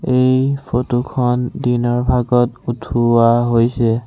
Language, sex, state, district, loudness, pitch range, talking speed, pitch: Assamese, male, Assam, Sonitpur, -16 LUFS, 120-125 Hz, 105 wpm, 120 Hz